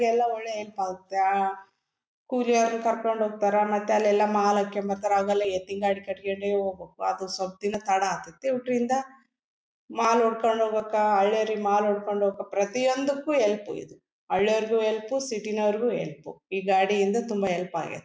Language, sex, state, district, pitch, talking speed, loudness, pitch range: Kannada, female, Karnataka, Bellary, 210 Hz, 145 wpm, -26 LUFS, 195-225 Hz